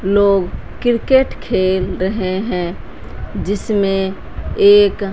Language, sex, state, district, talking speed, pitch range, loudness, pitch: Hindi, female, Punjab, Fazilka, 80 wpm, 190-205 Hz, -16 LUFS, 195 Hz